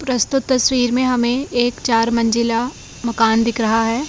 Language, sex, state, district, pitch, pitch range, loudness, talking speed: Hindi, female, Uttarakhand, Tehri Garhwal, 240 Hz, 230-255 Hz, -17 LUFS, 160 wpm